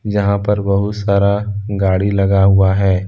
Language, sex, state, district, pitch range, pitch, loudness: Hindi, male, Jharkhand, Deoghar, 95-100 Hz, 100 Hz, -15 LUFS